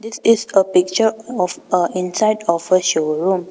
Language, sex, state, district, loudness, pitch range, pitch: English, female, Arunachal Pradesh, Papum Pare, -17 LUFS, 180-220 Hz, 185 Hz